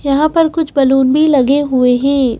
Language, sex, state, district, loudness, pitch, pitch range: Hindi, female, Madhya Pradesh, Bhopal, -12 LUFS, 275 Hz, 265-305 Hz